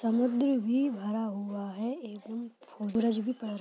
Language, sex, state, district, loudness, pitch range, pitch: Hindi, female, Bihar, Purnia, -32 LUFS, 210-245 Hz, 225 Hz